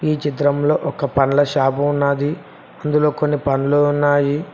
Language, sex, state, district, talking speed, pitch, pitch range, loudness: Telugu, male, Telangana, Mahabubabad, 130 wpm, 145 Hz, 140-150 Hz, -18 LUFS